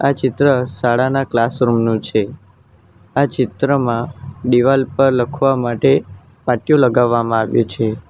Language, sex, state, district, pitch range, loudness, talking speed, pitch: Gujarati, male, Gujarat, Valsad, 115-135 Hz, -16 LUFS, 120 wpm, 125 Hz